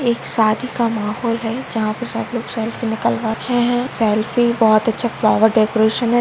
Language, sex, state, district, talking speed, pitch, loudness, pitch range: Hindi, female, Goa, North and South Goa, 185 wpm, 230 Hz, -18 LUFS, 220-240 Hz